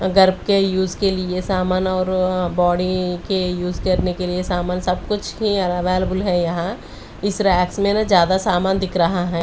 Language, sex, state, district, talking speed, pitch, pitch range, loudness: Hindi, female, Delhi, New Delhi, 185 wpm, 185 Hz, 180-190 Hz, -19 LUFS